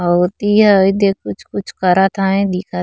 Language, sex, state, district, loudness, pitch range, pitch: Chhattisgarhi, female, Chhattisgarh, Korba, -14 LUFS, 180-200 Hz, 195 Hz